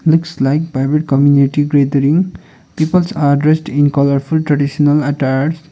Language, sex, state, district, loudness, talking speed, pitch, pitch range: English, male, Sikkim, Gangtok, -14 LUFS, 125 wpm, 145 Hz, 140-155 Hz